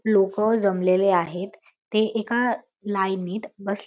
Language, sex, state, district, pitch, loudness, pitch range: Marathi, female, Maharashtra, Dhule, 200 Hz, -23 LUFS, 190-215 Hz